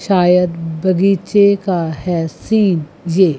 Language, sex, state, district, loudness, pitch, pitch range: Hindi, female, Chandigarh, Chandigarh, -15 LUFS, 180 Hz, 165-195 Hz